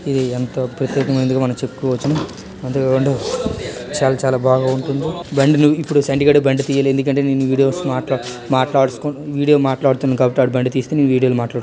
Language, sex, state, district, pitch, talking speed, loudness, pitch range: Telugu, male, Karnataka, Bellary, 135 Hz, 170 wpm, -17 LUFS, 130-140 Hz